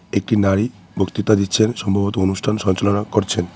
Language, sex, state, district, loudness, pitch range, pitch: Bengali, male, West Bengal, Cooch Behar, -19 LUFS, 95-105 Hz, 100 Hz